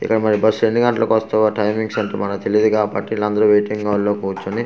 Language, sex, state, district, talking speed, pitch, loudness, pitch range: Telugu, male, Andhra Pradesh, Manyam, 205 wpm, 105 Hz, -18 LUFS, 105-110 Hz